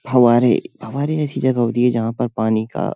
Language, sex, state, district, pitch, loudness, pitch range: Hindi, male, Uttar Pradesh, Hamirpur, 120 Hz, -18 LUFS, 115-130 Hz